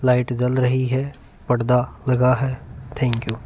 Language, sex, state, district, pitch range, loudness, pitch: Hindi, male, Punjab, Fazilka, 125-130 Hz, -21 LUFS, 125 Hz